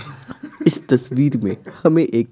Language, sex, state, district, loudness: Hindi, male, Bihar, Patna, -18 LUFS